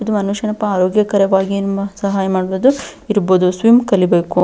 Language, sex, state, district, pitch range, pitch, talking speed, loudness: Kannada, female, Karnataka, Belgaum, 190-210 Hz, 200 Hz, 135 wpm, -15 LUFS